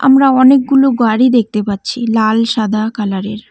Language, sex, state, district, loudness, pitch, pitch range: Bengali, female, West Bengal, Cooch Behar, -12 LUFS, 230 Hz, 215-260 Hz